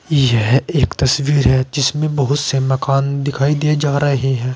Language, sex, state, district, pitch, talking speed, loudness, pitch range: Hindi, male, Uttar Pradesh, Saharanpur, 140 Hz, 170 wpm, -16 LUFS, 130-145 Hz